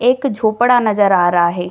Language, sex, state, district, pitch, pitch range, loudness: Hindi, female, Bihar, Jamui, 215 Hz, 180-245 Hz, -14 LUFS